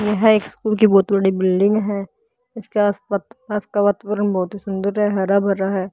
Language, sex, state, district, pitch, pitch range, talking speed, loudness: Hindi, female, Haryana, Jhajjar, 205 Hz, 195-210 Hz, 190 wpm, -19 LUFS